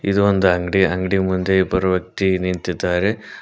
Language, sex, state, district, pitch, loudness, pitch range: Kannada, male, Karnataka, Koppal, 95 Hz, -19 LUFS, 90-95 Hz